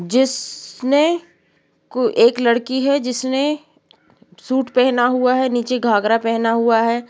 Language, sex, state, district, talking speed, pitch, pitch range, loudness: Hindi, female, Uttar Pradesh, Jalaun, 120 wpm, 250 Hz, 230-265 Hz, -17 LUFS